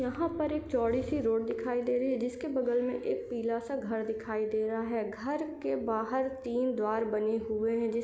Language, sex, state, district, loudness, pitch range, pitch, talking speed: Hindi, female, Chhattisgarh, Sarguja, -32 LUFS, 225-255 Hz, 235 Hz, 225 wpm